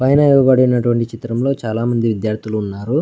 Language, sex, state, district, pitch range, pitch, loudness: Telugu, male, Andhra Pradesh, Anantapur, 110-130 Hz, 120 Hz, -16 LUFS